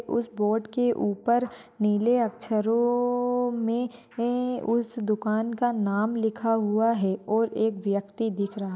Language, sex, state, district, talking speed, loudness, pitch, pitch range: Hindi, female, Maharashtra, Nagpur, 135 wpm, -26 LUFS, 225 Hz, 215-240 Hz